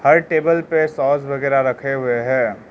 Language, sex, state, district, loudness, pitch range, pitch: Hindi, male, Arunachal Pradesh, Lower Dibang Valley, -18 LUFS, 130-155 Hz, 140 Hz